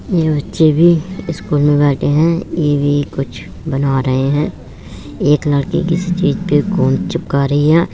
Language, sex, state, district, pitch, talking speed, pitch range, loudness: Hindi, male, Uttar Pradesh, Budaun, 145 Hz, 165 wpm, 140-165 Hz, -15 LUFS